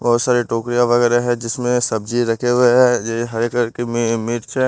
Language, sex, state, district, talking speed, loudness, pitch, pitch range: Hindi, male, Bihar, Patna, 190 wpm, -17 LUFS, 120 Hz, 115-120 Hz